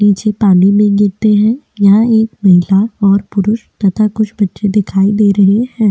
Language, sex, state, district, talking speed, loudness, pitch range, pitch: Hindi, female, Delhi, New Delhi, 170 wpm, -11 LUFS, 195-215 Hz, 205 Hz